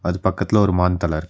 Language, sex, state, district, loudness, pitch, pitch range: Tamil, male, Tamil Nadu, Nilgiris, -19 LUFS, 90 Hz, 85-100 Hz